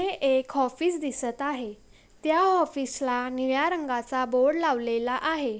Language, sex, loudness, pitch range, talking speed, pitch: Marathi, female, -26 LUFS, 250-315 Hz, 140 wpm, 265 Hz